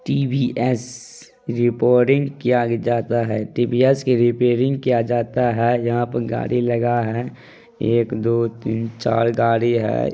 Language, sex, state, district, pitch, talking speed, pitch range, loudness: Maithili, male, Bihar, Madhepura, 120 Hz, 130 wpm, 115-125 Hz, -19 LUFS